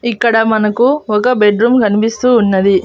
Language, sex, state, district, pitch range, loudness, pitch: Telugu, female, Andhra Pradesh, Annamaya, 210-240 Hz, -12 LUFS, 225 Hz